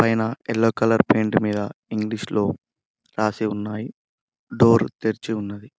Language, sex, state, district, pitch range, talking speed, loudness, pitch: Telugu, male, Telangana, Mahabubabad, 105-115 Hz, 125 wpm, -22 LUFS, 110 Hz